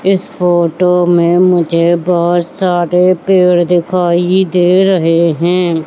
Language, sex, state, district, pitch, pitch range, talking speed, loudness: Hindi, female, Madhya Pradesh, Katni, 175 Hz, 170-180 Hz, 110 wpm, -11 LUFS